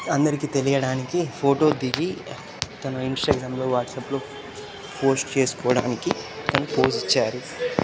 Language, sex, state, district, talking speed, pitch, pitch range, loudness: Telugu, male, Telangana, Nalgonda, 105 wpm, 135 Hz, 130-145 Hz, -24 LUFS